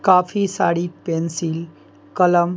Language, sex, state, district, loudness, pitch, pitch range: Hindi, male, Bihar, Patna, -20 LUFS, 175 Hz, 165-180 Hz